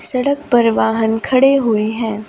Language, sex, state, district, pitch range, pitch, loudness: Hindi, female, Uttar Pradesh, Shamli, 220-260 Hz, 230 Hz, -15 LUFS